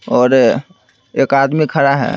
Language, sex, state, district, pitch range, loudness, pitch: Hindi, male, Bihar, Patna, 130-140 Hz, -14 LUFS, 135 Hz